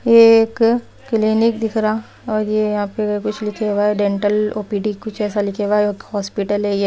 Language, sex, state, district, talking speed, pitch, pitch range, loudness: Hindi, female, Haryana, Rohtak, 220 wpm, 210 Hz, 205-220 Hz, -18 LUFS